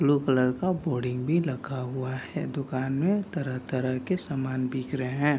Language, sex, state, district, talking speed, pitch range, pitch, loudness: Hindi, male, Bihar, Kishanganj, 180 wpm, 130-145 Hz, 135 Hz, -28 LUFS